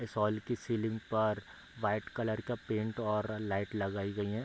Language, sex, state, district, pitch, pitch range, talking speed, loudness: Hindi, male, Bihar, Bhagalpur, 110 Hz, 105-110 Hz, 175 wpm, -36 LUFS